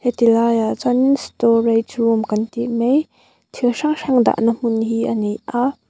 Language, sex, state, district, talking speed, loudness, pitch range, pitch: Mizo, female, Mizoram, Aizawl, 195 wpm, -18 LUFS, 230-245 Hz, 235 Hz